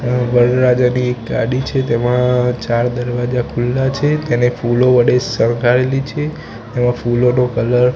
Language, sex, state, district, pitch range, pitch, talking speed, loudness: Gujarati, male, Gujarat, Gandhinagar, 120-125 Hz, 125 Hz, 145 wpm, -15 LUFS